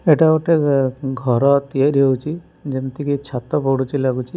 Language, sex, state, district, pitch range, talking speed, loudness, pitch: Odia, male, Odisha, Malkangiri, 130-150 Hz, 135 wpm, -18 LUFS, 140 Hz